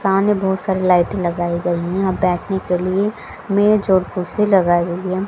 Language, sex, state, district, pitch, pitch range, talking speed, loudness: Hindi, female, Haryana, Jhajjar, 185 Hz, 175-195 Hz, 195 wpm, -18 LUFS